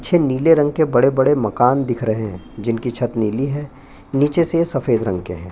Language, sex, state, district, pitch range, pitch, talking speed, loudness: Hindi, male, Chhattisgarh, Bastar, 110-145 Hz, 130 Hz, 205 wpm, -18 LUFS